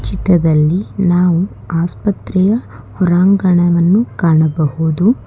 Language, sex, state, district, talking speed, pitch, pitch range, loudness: Kannada, female, Karnataka, Bangalore, 55 wpm, 175 Hz, 165-190 Hz, -14 LUFS